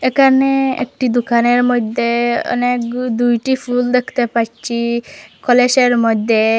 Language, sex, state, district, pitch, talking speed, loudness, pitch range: Bengali, female, Assam, Hailakandi, 245 Hz, 120 wpm, -15 LUFS, 235-250 Hz